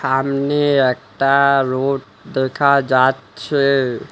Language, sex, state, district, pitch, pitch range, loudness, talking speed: Bengali, male, West Bengal, Alipurduar, 135 Hz, 130-140 Hz, -16 LUFS, 75 wpm